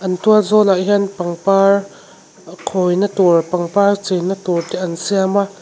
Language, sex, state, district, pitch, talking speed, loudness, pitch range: Mizo, female, Mizoram, Aizawl, 195 Hz, 140 wpm, -15 LUFS, 180-200 Hz